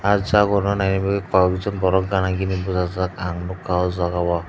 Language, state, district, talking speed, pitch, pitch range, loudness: Kokborok, Tripura, Dhalai, 215 wpm, 95 Hz, 90-95 Hz, -21 LUFS